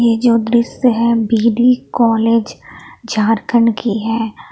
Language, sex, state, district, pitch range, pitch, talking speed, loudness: Hindi, female, Jharkhand, Palamu, 225-235 Hz, 230 Hz, 135 wpm, -14 LUFS